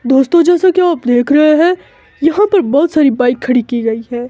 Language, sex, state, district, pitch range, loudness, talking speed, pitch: Hindi, female, Himachal Pradesh, Shimla, 245-345 Hz, -12 LUFS, 225 wpm, 290 Hz